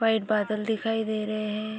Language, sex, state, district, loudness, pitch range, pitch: Hindi, female, Uttar Pradesh, Budaun, -27 LUFS, 215-220 Hz, 215 Hz